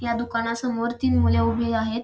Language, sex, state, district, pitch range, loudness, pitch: Marathi, female, Maharashtra, Sindhudurg, 220-235 Hz, -23 LUFS, 230 Hz